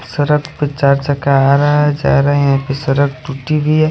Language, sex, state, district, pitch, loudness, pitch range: Hindi, male, Odisha, Khordha, 145 Hz, -14 LUFS, 140-150 Hz